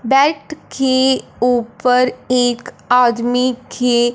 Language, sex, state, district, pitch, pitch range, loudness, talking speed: Hindi, female, Punjab, Fazilka, 250 Hz, 245-260 Hz, -16 LUFS, 100 wpm